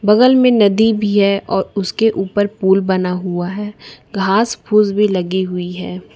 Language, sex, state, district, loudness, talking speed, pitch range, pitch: Hindi, female, Jharkhand, Ranchi, -15 LUFS, 175 wpm, 185-210 Hz, 200 Hz